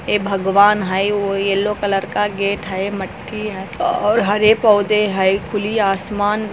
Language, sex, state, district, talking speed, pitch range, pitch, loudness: Hindi, female, Andhra Pradesh, Anantapur, 220 wpm, 195-210 Hz, 205 Hz, -17 LUFS